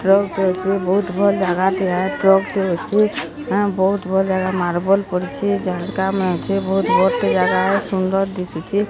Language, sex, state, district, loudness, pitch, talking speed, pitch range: Odia, female, Odisha, Sambalpur, -18 LUFS, 190 Hz, 160 wpm, 185-195 Hz